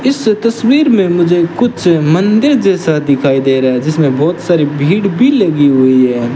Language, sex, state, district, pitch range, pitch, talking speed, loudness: Hindi, male, Rajasthan, Bikaner, 145-215 Hz, 170 Hz, 180 wpm, -11 LUFS